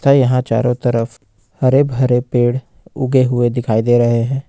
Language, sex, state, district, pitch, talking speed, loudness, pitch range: Hindi, male, Jharkhand, Ranchi, 125 Hz, 160 wpm, -15 LUFS, 120-130 Hz